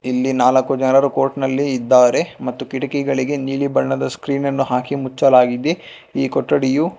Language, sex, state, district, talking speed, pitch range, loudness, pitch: Kannada, male, Karnataka, Bangalore, 135 wpm, 125-140 Hz, -17 LUFS, 135 Hz